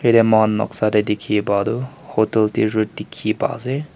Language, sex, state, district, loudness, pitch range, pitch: Nagamese, male, Nagaland, Kohima, -19 LUFS, 105-120 Hz, 110 Hz